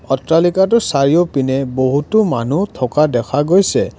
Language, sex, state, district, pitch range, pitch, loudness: Assamese, male, Assam, Kamrup Metropolitan, 135-175 Hz, 145 Hz, -15 LUFS